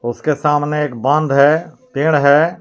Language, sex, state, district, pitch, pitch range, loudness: Hindi, male, Jharkhand, Palamu, 150 Hz, 140-155 Hz, -15 LUFS